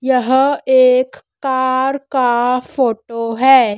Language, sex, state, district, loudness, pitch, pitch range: Hindi, female, Madhya Pradesh, Dhar, -15 LUFS, 260 Hz, 245-275 Hz